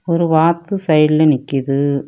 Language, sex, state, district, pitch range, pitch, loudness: Tamil, female, Tamil Nadu, Kanyakumari, 140-170 Hz, 155 Hz, -15 LUFS